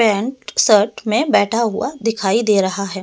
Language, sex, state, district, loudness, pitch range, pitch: Hindi, female, Delhi, New Delhi, -17 LUFS, 200-230 Hz, 215 Hz